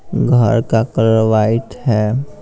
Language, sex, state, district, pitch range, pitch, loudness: Hindi, male, Bihar, Patna, 110-120 Hz, 115 Hz, -15 LUFS